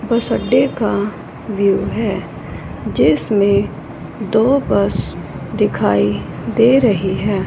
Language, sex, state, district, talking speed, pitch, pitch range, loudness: Hindi, female, Punjab, Fazilka, 95 wpm, 205 Hz, 195-230 Hz, -16 LUFS